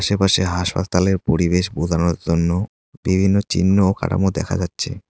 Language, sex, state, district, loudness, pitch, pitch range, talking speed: Bengali, male, West Bengal, Cooch Behar, -19 LUFS, 95 Hz, 85-95 Hz, 130 wpm